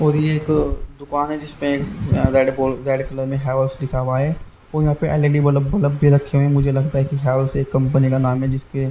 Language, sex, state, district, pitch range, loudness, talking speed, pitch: Hindi, male, Haryana, Rohtak, 135-145 Hz, -19 LUFS, 245 wpm, 140 Hz